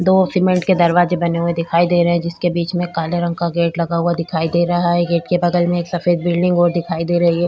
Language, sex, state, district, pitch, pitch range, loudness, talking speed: Hindi, female, Bihar, Vaishali, 175 Hz, 170-175 Hz, -17 LUFS, 280 wpm